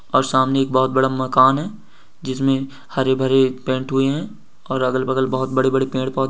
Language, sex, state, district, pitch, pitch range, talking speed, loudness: Hindi, female, Uttar Pradesh, Jyotiba Phule Nagar, 130 Hz, 130-135 Hz, 180 wpm, -19 LUFS